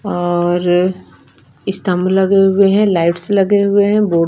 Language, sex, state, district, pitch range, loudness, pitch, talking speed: Hindi, female, Punjab, Fazilka, 175-200 Hz, -13 LUFS, 190 Hz, 125 wpm